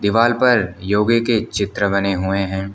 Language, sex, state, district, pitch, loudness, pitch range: Hindi, male, Uttar Pradesh, Lucknow, 100 Hz, -18 LUFS, 95-115 Hz